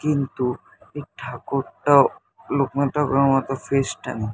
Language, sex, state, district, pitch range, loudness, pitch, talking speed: Bengali, male, West Bengal, North 24 Parganas, 135-140 Hz, -22 LUFS, 140 Hz, 125 wpm